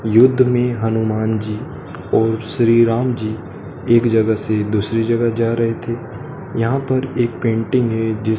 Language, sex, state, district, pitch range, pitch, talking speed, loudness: Hindi, male, Madhya Pradesh, Dhar, 110-120 Hz, 115 Hz, 155 wpm, -17 LUFS